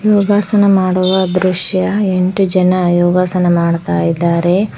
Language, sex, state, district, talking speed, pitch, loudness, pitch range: Kannada, female, Karnataka, Koppal, 100 wpm, 185 Hz, -13 LUFS, 175-195 Hz